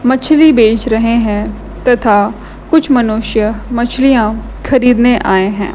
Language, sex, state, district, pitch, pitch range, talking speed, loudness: Hindi, female, Chhattisgarh, Raipur, 235 Hz, 215-255 Hz, 115 wpm, -11 LUFS